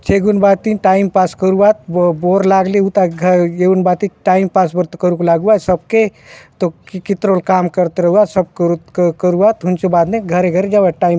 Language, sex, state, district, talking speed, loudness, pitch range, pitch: Halbi, male, Chhattisgarh, Bastar, 160 wpm, -13 LUFS, 180-195 Hz, 185 Hz